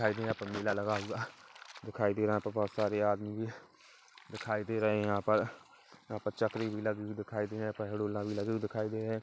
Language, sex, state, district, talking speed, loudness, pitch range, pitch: Hindi, male, Chhattisgarh, Kabirdham, 245 wpm, -35 LUFS, 105-110 Hz, 105 Hz